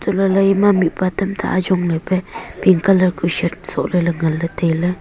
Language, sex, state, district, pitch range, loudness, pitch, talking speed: Wancho, female, Arunachal Pradesh, Longding, 170-195 Hz, -17 LUFS, 185 Hz, 180 wpm